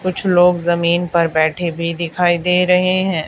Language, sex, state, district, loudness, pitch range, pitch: Hindi, female, Haryana, Charkhi Dadri, -16 LUFS, 170-180 Hz, 175 Hz